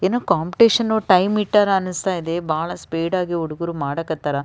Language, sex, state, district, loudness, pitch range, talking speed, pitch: Kannada, female, Karnataka, Raichur, -20 LUFS, 165-200 Hz, 160 wpm, 180 Hz